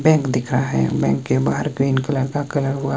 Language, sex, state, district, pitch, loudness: Hindi, male, Himachal Pradesh, Shimla, 135 Hz, -20 LUFS